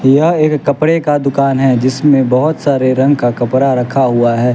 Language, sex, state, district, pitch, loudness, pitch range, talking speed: Hindi, male, Bihar, West Champaran, 135 Hz, -12 LUFS, 130-145 Hz, 200 wpm